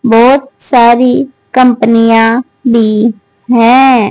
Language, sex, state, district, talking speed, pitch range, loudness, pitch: Hindi, female, Haryana, Charkhi Dadri, 75 wpm, 230-255 Hz, -8 LUFS, 240 Hz